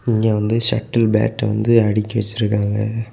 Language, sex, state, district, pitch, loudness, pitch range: Tamil, male, Tamil Nadu, Kanyakumari, 110 Hz, -18 LUFS, 105-115 Hz